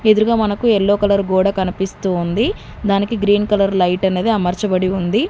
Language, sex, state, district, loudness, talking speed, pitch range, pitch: Telugu, female, Telangana, Mahabubabad, -16 LUFS, 160 wpm, 190-215 Hz, 200 Hz